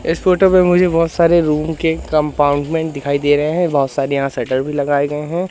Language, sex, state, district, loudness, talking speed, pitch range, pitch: Hindi, male, Madhya Pradesh, Katni, -15 LUFS, 230 wpm, 145-170 Hz, 155 Hz